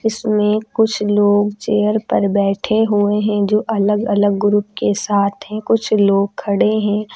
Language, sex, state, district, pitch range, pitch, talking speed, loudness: Hindi, female, Uttar Pradesh, Lucknow, 205-215 Hz, 210 Hz, 160 wpm, -16 LUFS